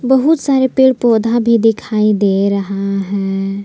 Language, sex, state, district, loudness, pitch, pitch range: Hindi, female, Jharkhand, Palamu, -14 LUFS, 220 Hz, 195-255 Hz